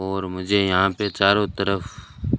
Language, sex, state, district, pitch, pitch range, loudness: Hindi, male, Rajasthan, Bikaner, 100 Hz, 95-100 Hz, -21 LUFS